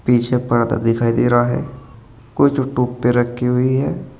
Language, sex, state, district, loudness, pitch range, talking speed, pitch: Hindi, male, Uttar Pradesh, Saharanpur, -17 LUFS, 120-125 Hz, 185 wpm, 120 Hz